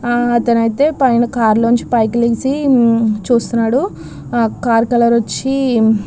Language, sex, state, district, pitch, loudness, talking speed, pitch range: Telugu, female, Andhra Pradesh, Krishna, 235 Hz, -14 LUFS, 120 wpm, 225-240 Hz